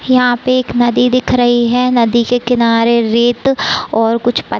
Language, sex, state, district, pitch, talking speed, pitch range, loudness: Hindi, female, Chhattisgarh, Raigarh, 245 Hz, 180 wpm, 235-250 Hz, -12 LUFS